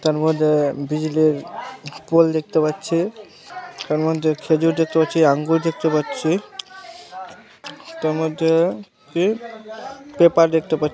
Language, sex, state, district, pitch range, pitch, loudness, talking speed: Bengali, male, West Bengal, Malda, 155-215 Hz, 165 Hz, -19 LUFS, 105 wpm